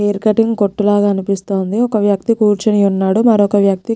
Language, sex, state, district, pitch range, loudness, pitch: Telugu, female, Telangana, Nalgonda, 200-220 Hz, -14 LUFS, 205 Hz